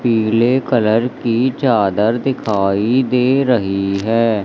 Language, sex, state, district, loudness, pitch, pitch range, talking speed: Hindi, male, Madhya Pradesh, Katni, -16 LUFS, 115 Hz, 105-125 Hz, 110 wpm